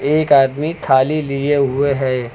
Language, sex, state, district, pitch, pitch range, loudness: Hindi, male, Uttar Pradesh, Lucknow, 140 Hz, 130-150 Hz, -16 LUFS